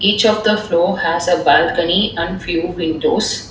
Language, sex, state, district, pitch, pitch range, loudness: English, female, Telangana, Hyderabad, 175 Hz, 170-205 Hz, -16 LUFS